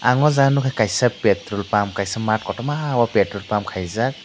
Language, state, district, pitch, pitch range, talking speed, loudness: Kokborok, Tripura, Dhalai, 115 Hz, 105-130 Hz, 185 wpm, -20 LUFS